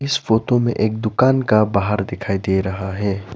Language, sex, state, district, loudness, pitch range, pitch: Hindi, male, Arunachal Pradesh, Lower Dibang Valley, -19 LUFS, 95-120 Hz, 105 Hz